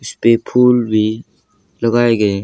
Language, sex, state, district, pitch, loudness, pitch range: Hindi, male, Haryana, Jhajjar, 115 Hz, -14 LUFS, 110-120 Hz